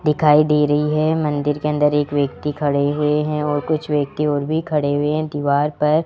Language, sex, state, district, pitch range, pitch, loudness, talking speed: Hindi, male, Rajasthan, Jaipur, 145-150 Hz, 150 Hz, -19 LUFS, 225 wpm